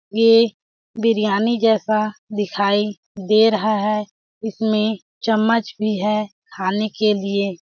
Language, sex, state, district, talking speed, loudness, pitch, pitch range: Hindi, female, Chhattisgarh, Balrampur, 110 wpm, -19 LUFS, 215 Hz, 205-220 Hz